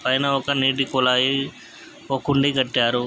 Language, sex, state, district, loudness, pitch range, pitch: Telugu, male, Andhra Pradesh, Krishna, -20 LUFS, 130-140 Hz, 135 Hz